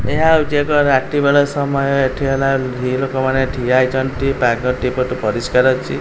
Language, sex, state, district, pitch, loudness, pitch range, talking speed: Odia, male, Odisha, Khordha, 130 Hz, -16 LUFS, 125-140 Hz, 140 wpm